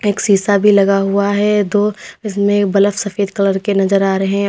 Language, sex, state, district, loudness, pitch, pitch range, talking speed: Hindi, female, Uttar Pradesh, Lalitpur, -14 LUFS, 200 Hz, 195-205 Hz, 215 wpm